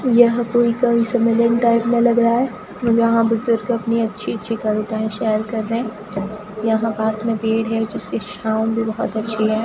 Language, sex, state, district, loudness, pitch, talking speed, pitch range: Hindi, female, Rajasthan, Bikaner, -19 LUFS, 225 Hz, 195 wpm, 220-235 Hz